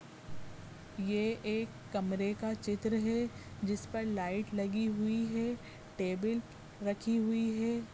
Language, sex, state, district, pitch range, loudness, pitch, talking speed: Hindi, female, Goa, North and South Goa, 200-225 Hz, -35 LUFS, 220 Hz, 120 wpm